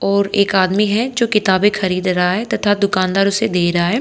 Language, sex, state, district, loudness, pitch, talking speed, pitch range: Hindi, female, Haryana, Charkhi Dadri, -16 LUFS, 200 Hz, 225 wpm, 185-210 Hz